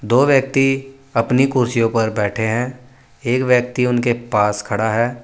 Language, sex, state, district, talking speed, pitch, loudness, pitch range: Hindi, male, Uttar Pradesh, Saharanpur, 150 wpm, 120 Hz, -17 LUFS, 115-130 Hz